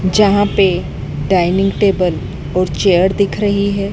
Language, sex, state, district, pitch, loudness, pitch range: Hindi, male, Madhya Pradesh, Dhar, 190 Hz, -15 LUFS, 180-200 Hz